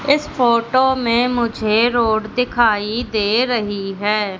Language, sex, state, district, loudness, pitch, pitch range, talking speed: Hindi, female, Madhya Pradesh, Katni, -17 LUFS, 235 Hz, 215-245 Hz, 125 wpm